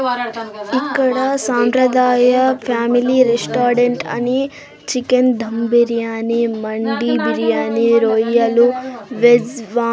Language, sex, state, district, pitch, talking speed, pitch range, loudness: Telugu, female, Andhra Pradesh, Sri Satya Sai, 240 Hz, 80 wpm, 230-255 Hz, -16 LUFS